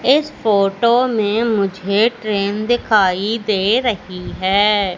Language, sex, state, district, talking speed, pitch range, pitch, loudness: Hindi, female, Madhya Pradesh, Katni, 110 wpm, 195-235 Hz, 210 Hz, -16 LUFS